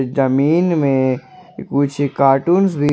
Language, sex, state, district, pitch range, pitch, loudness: Hindi, male, Jharkhand, Ranchi, 135-175 Hz, 145 Hz, -16 LUFS